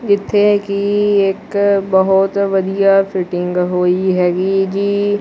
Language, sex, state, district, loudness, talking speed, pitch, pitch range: Punjabi, male, Punjab, Kapurthala, -14 LUFS, 115 wpm, 195 Hz, 190-200 Hz